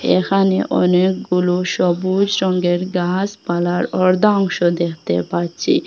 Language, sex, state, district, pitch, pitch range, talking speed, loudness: Bengali, female, Assam, Hailakandi, 180 Hz, 175-190 Hz, 80 wpm, -17 LUFS